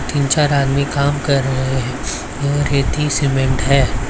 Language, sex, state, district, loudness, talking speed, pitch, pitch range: Hindi, male, Maharashtra, Mumbai Suburban, -17 LUFS, 175 wpm, 140 Hz, 135-145 Hz